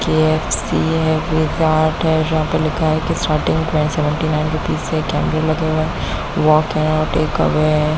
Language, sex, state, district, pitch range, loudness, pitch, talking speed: Hindi, female, Chhattisgarh, Bilaspur, 155-160 Hz, -17 LUFS, 155 Hz, 190 wpm